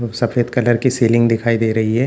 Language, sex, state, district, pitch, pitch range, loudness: Hindi, male, Bihar, Jamui, 120 Hz, 115-120 Hz, -16 LUFS